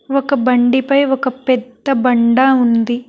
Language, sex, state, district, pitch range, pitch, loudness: Telugu, female, Telangana, Hyderabad, 245-270 Hz, 255 Hz, -14 LUFS